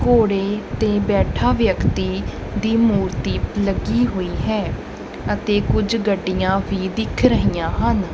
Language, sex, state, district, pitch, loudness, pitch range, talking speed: Punjabi, male, Punjab, Kapurthala, 200 Hz, -20 LUFS, 190-215 Hz, 120 wpm